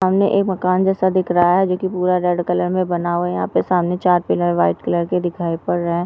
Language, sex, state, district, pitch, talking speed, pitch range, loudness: Hindi, female, Maharashtra, Aurangabad, 180 Hz, 270 wpm, 175-185 Hz, -18 LUFS